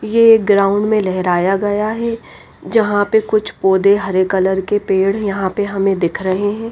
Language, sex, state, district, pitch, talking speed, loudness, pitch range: Hindi, female, Odisha, Nuapada, 200 Hz, 180 wpm, -15 LUFS, 190-215 Hz